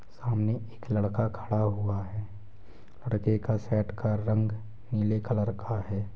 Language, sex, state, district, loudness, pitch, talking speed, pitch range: Hindi, male, Jharkhand, Jamtara, -30 LUFS, 105 Hz, 145 wpm, 105-110 Hz